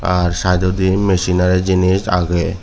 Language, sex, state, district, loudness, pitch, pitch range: Chakma, male, Tripura, Dhalai, -15 LUFS, 90 Hz, 90-95 Hz